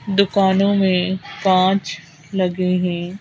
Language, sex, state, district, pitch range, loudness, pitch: Hindi, female, Madhya Pradesh, Bhopal, 180-195 Hz, -18 LUFS, 185 Hz